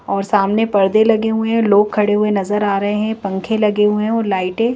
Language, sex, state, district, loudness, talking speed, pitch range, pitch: Hindi, female, Madhya Pradesh, Bhopal, -16 LUFS, 250 wpm, 200-220 Hz, 210 Hz